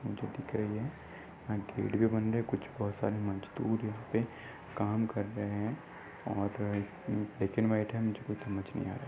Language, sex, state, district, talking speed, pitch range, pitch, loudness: Hindi, male, Uttar Pradesh, Ghazipur, 205 wpm, 100-110 Hz, 105 Hz, -35 LUFS